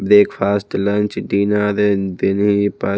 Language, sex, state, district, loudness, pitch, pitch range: Hindi, male, Himachal Pradesh, Shimla, -17 LUFS, 100 Hz, 100-105 Hz